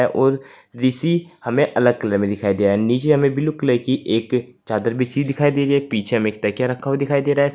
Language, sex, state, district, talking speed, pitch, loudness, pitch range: Hindi, male, Uttar Pradesh, Saharanpur, 245 wpm, 125 Hz, -19 LUFS, 115-140 Hz